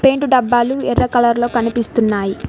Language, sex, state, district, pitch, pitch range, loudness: Telugu, female, Telangana, Mahabubabad, 240 Hz, 230-255 Hz, -15 LUFS